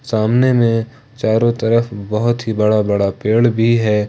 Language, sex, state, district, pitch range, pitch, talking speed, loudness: Hindi, male, Jharkhand, Ranchi, 105-120 Hz, 115 Hz, 160 wpm, -16 LUFS